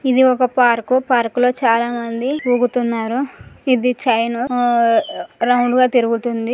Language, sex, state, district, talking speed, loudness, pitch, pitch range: Telugu, female, Andhra Pradesh, Srikakulam, 120 wpm, -17 LUFS, 245 Hz, 235-255 Hz